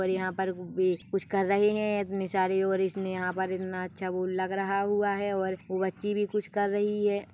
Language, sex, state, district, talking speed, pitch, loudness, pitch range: Hindi, female, Chhattisgarh, Bilaspur, 235 wpm, 190 Hz, -29 LUFS, 185-200 Hz